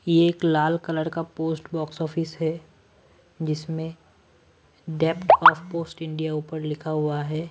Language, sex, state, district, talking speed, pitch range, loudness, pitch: Hindi, male, Delhi, New Delhi, 145 wpm, 150-165 Hz, -24 LUFS, 160 Hz